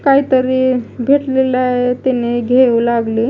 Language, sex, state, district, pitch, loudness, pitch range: Marathi, female, Maharashtra, Mumbai Suburban, 255 Hz, -14 LUFS, 240-260 Hz